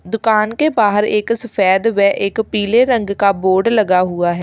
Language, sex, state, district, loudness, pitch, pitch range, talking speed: Hindi, female, Uttar Pradesh, Lalitpur, -15 LUFS, 210 Hz, 195-225 Hz, 190 wpm